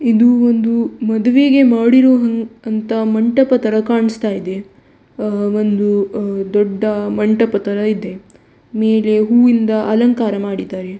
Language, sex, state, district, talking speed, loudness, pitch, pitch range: Kannada, female, Karnataka, Dakshina Kannada, 100 wpm, -14 LUFS, 220 Hz, 205-230 Hz